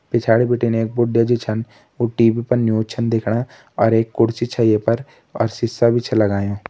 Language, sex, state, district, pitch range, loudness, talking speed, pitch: Hindi, male, Uttarakhand, Tehri Garhwal, 110-120 Hz, -18 LUFS, 225 wpm, 115 Hz